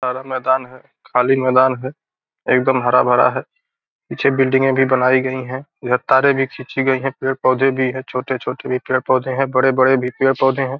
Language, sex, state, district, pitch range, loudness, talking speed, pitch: Hindi, male, Bihar, Gopalganj, 130-135 Hz, -17 LUFS, 190 wpm, 130 Hz